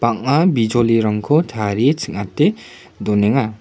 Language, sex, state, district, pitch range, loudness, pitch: Garo, male, Meghalaya, West Garo Hills, 105-140 Hz, -17 LUFS, 115 Hz